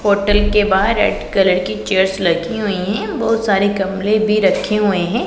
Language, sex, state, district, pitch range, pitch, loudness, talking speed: Hindi, female, Punjab, Pathankot, 190-210 Hz, 200 Hz, -16 LUFS, 195 wpm